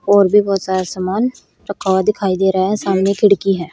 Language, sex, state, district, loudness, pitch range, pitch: Hindi, female, Haryana, Rohtak, -16 LUFS, 190-205 Hz, 195 Hz